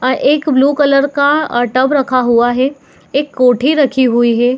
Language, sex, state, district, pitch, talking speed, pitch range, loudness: Hindi, female, Jharkhand, Jamtara, 265 Hz, 185 wpm, 250-285 Hz, -12 LUFS